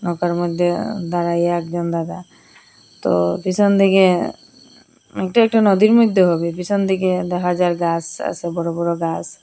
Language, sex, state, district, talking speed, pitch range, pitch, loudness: Bengali, female, Assam, Hailakandi, 145 wpm, 170-190 Hz, 175 Hz, -18 LUFS